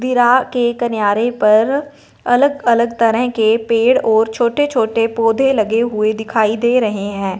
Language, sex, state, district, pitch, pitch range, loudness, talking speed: Hindi, female, Punjab, Fazilka, 230 Hz, 220-245 Hz, -15 LUFS, 155 wpm